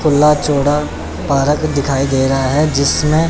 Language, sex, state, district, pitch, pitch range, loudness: Hindi, male, Chandigarh, Chandigarh, 145 Hz, 135-150 Hz, -14 LUFS